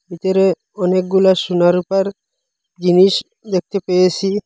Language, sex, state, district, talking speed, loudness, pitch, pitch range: Bengali, male, Assam, Hailakandi, 95 wpm, -16 LUFS, 190 Hz, 180-195 Hz